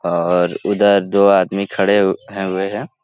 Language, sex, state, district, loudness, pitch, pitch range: Hindi, male, Bihar, Jahanabad, -16 LUFS, 100 Hz, 95-100 Hz